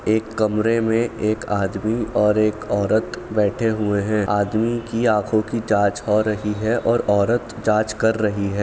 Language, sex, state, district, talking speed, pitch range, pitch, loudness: Hindi, male, Bihar, Saran, 175 wpm, 105-115 Hz, 110 Hz, -20 LUFS